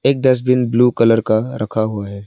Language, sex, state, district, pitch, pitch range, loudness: Hindi, male, Arunachal Pradesh, Lower Dibang Valley, 115 Hz, 110-125 Hz, -16 LUFS